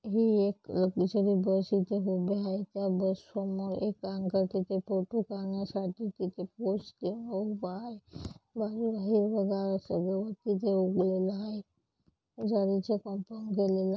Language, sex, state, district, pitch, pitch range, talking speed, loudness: Marathi, female, Maharashtra, Chandrapur, 195 Hz, 190-210 Hz, 105 wpm, -32 LUFS